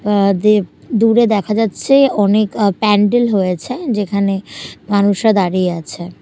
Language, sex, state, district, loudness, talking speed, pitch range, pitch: Bengali, female, Bihar, Katihar, -14 LUFS, 105 wpm, 195-220 Hz, 205 Hz